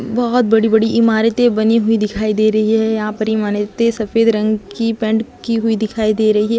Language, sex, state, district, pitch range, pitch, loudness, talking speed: Hindi, female, Chhattisgarh, Sukma, 215-225 Hz, 220 Hz, -15 LUFS, 220 wpm